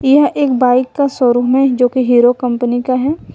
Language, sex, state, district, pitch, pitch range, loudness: Hindi, female, Jharkhand, Ranchi, 255 Hz, 245-270 Hz, -13 LUFS